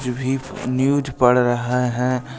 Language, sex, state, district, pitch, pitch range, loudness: Hindi, male, Jharkhand, Deoghar, 125 Hz, 125-135 Hz, -20 LUFS